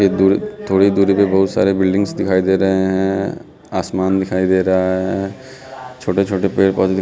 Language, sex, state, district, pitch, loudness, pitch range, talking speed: Hindi, male, Bihar, West Champaran, 95 Hz, -16 LUFS, 95-100 Hz, 160 wpm